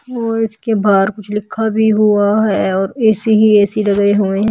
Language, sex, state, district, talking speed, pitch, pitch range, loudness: Hindi, female, Haryana, Jhajjar, 200 wpm, 210 Hz, 205-220 Hz, -14 LUFS